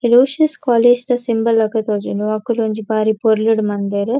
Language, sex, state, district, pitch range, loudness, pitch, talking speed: Tulu, female, Karnataka, Dakshina Kannada, 215-245 Hz, -16 LUFS, 225 Hz, 155 wpm